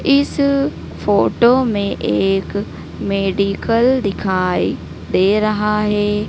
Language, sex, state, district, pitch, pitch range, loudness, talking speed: Hindi, female, Madhya Pradesh, Dhar, 210 Hz, 195-240 Hz, -17 LUFS, 85 wpm